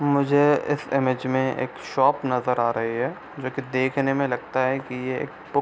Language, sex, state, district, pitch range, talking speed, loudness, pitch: Hindi, male, Bihar, East Champaran, 130-140 Hz, 205 wpm, -24 LUFS, 130 Hz